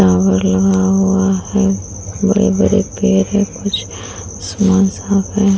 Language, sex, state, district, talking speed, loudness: Hindi, female, Uttar Pradesh, Muzaffarnagar, 95 wpm, -14 LUFS